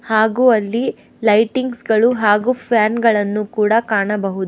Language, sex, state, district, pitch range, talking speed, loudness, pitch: Kannada, female, Karnataka, Bangalore, 210-240 Hz, 120 wpm, -16 LUFS, 220 Hz